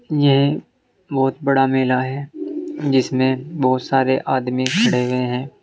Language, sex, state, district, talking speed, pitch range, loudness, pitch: Hindi, male, Uttar Pradesh, Saharanpur, 130 wpm, 130-140 Hz, -19 LUFS, 135 Hz